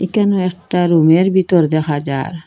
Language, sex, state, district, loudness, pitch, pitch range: Bengali, female, Assam, Hailakandi, -14 LUFS, 175 Hz, 155-185 Hz